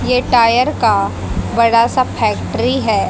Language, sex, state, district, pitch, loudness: Hindi, female, Haryana, Jhajjar, 230 Hz, -14 LUFS